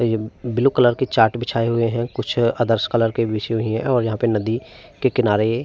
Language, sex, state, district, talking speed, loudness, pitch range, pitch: Hindi, male, Uttar Pradesh, Varanasi, 235 wpm, -20 LUFS, 110-120 Hz, 115 Hz